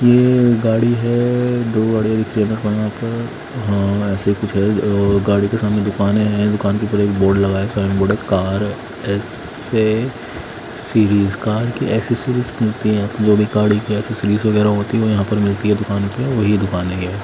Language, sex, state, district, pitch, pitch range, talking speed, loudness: Hindi, male, Bihar, West Champaran, 105 Hz, 100-115 Hz, 175 wpm, -17 LUFS